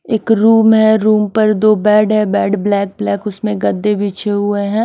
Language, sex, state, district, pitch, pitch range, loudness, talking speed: Hindi, female, Himachal Pradesh, Shimla, 210 Hz, 205-220 Hz, -13 LUFS, 200 wpm